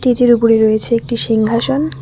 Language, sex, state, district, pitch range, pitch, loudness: Bengali, female, West Bengal, Cooch Behar, 220-245 Hz, 230 Hz, -13 LUFS